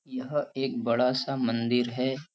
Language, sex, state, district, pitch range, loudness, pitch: Hindi, male, Uttar Pradesh, Varanasi, 120-135 Hz, -28 LUFS, 130 Hz